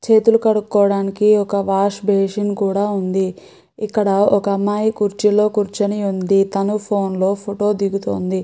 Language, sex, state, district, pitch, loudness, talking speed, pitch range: Telugu, female, Andhra Pradesh, Chittoor, 200 Hz, -17 LUFS, 120 wpm, 195-210 Hz